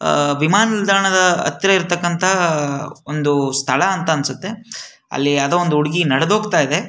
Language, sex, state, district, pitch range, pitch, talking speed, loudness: Kannada, male, Karnataka, Shimoga, 145-190 Hz, 170 Hz, 140 wpm, -16 LUFS